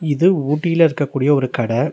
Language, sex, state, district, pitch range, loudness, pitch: Tamil, male, Tamil Nadu, Nilgiris, 135-165 Hz, -17 LUFS, 145 Hz